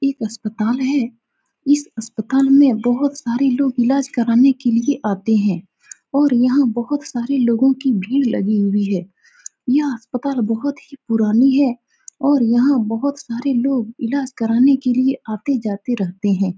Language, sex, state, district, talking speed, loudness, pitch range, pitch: Hindi, female, Bihar, Saran, 160 wpm, -18 LUFS, 225-275 Hz, 250 Hz